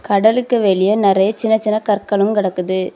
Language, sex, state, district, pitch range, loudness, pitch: Tamil, female, Tamil Nadu, Kanyakumari, 195-215 Hz, -15 LUFS, 205 Hz